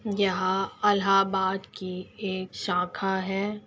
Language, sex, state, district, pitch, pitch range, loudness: Hindi, female, Uttar Pradesh, Etah, 195 Hz, 185-200 Hz, -27 LUFS